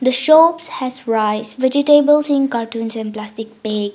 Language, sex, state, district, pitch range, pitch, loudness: English, female, Nagaland, Dimapur, 220-285 Hz, 245 Hz, -16 LUFS